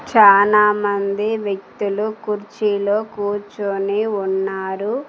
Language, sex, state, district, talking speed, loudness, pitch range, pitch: Telugu, female, Telangana, Mahabubabad, 60 wpm, -18 LUFS, 200-210 Hz, 205 Hz